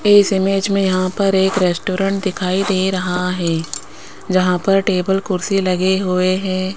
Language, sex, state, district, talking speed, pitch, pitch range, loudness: Hindi, female, Rajasthan, Jaipur, 160 wpm, 190 Hz, 185-195 Hz, -17 LUFS